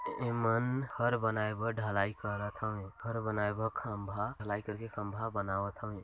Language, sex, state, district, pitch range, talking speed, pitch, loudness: Hindi, male, Chhattisgarh, Balrampur, 105-115 Hz, 170 wpm, 110 Hz, -36 LUFS